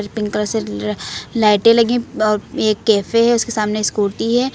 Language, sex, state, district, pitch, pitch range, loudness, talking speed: Hindi, female, Uttar Pradesh, Lucknow, 215 Hz, 210-230 Hz, -17 LUFS, 200 wpm